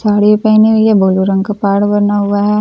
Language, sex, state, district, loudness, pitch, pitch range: Hindi, female, Bihar, Katihar, -11 LUFS, 205 Hz, 200-210 Hz